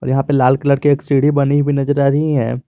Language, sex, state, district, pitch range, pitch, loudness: Hindi, male, Jharkhand, Garhwa, 135-145 Hz, 140 Hz, -15 LUFS